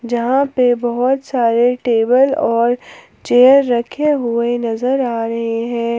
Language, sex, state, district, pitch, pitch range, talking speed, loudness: Hindi, female, Jharkhand, Palamu, 240 Hz, 235-260 Hz, 130 wpm, -15 LUFS